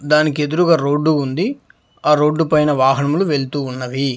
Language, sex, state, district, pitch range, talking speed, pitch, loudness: Telugu, male, Telangana, Hyderabad, 140-155 Hz, 130 wpm, 150 Hz, -16 LUFS